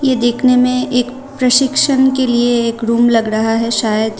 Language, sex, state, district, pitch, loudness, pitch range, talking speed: Hindi, female, Tripura, Unakoti, 245 Hz, -13 LUFS, 230-260 Hz, 170 wpm